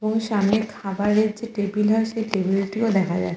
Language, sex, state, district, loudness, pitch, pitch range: Bengali, female, West Bengal, Kolkata, -22 LUFS, 210 Hz, 195-220 Hz